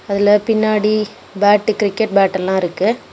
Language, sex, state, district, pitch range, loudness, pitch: Tamil, female, Tamil Nadu, Kanyakumari, 200-215 Hz, -15 LUFS, 205 Hz